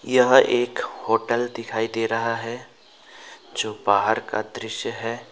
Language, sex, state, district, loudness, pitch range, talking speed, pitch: Hindi, male, West Bengal, Alipurduar, -23 LUFS, 115-120 Hz, 135 wpm, 115 Hz